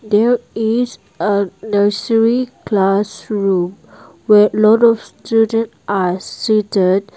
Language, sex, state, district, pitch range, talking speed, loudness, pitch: English, female, Nagaland, Dimapur, 200-225 Hz, 100 wpm, -15 LUFS, 210 Hz